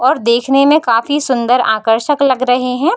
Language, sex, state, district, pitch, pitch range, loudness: Hindi, female, Bihar, Darbhanga, 255 Hz, 235-285 Hz, -13 LUFS